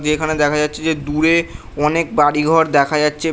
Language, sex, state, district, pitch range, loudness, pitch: Bengali, male, West Bengal, North 24 Parganas, 150-160 Hz, -16 LUFS, 150 Hz